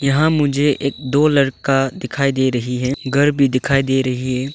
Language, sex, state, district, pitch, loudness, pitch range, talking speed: Hindi, male, Arunachal Pradesh, Longding, 135 Hz, -17 LUFS, 130-140 Hz, 195 wpm